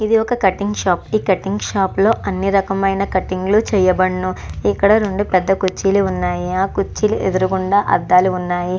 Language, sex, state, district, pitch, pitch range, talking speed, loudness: Telugu, female, Andhra Pradesh, Chittoor, 195 Hz, 185-200 Hz, 145 wpm, -17 LUFS